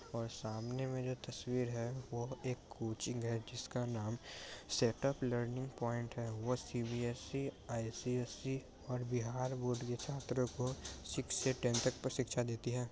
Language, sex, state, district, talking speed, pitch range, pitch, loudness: Hindi, male, Bihar, Muzaffarpur, 155 wpm, 120-130 Hz, 125 Hz, -41 LUFS